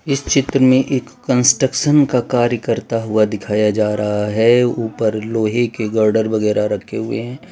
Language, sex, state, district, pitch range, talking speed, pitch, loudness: Hindi, male, Gujarat, Valsad, 110-125 Hz, 170 wpm, 115 Hz, -16 LUFS